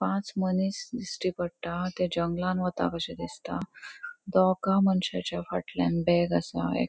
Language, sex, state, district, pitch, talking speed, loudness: Konkani, female, Goa, North and South Goa, 185 Hz, 140 wpm, -29 LUFS